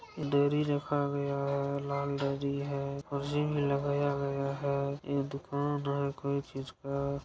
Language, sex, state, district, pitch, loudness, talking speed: Hindi, male, Bihar, Saran, 140 Hz, -33 LUFS, 140 wpm